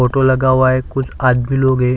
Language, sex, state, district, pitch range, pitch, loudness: Hindi, male, Chhattisgarh, Sukma, 125-130 Hz, 130 Hz, -15 LUFS